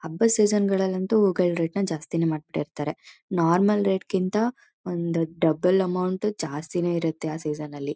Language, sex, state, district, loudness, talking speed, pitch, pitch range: Kannada, female, Karnataka, Mysore, -25 LUFS, 135 wpm, 180 Hz, 160-200 Hz